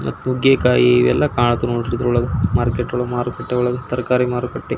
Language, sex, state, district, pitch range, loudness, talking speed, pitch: Kannada, male, Karnataka, Belgaum, 120-125 Hz, -18 LUFS, 150 wpm, 120 Hz